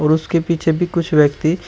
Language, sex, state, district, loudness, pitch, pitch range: Hindi, male, Uttar Pradesh, Shamli, -16 LUFS, 160 Hz, 155-170 Hz